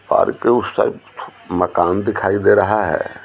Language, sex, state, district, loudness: Hindi, male, Bihar, Patna, -17 LUFS